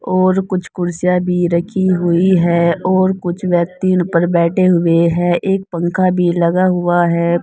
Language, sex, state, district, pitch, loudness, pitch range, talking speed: Hindi, female, Uttar Pradesh, Saharanpur, 175 Hz, -15 LUFS, 170-185 Hz, 170 wpm